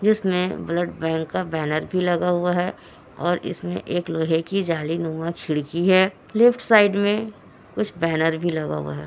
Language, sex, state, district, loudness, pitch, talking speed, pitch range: Hindi, female, Bihar, Kishanganj, -22 LUFS, 175 Hz, 170 wpm, 160-190 Hz